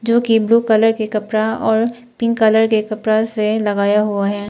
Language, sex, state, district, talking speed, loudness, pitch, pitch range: Hindi, female, Arunachal Pradesh, Papum Pare, 200 wpm, -16 LUFS, 220 Hz, 215-225 Hz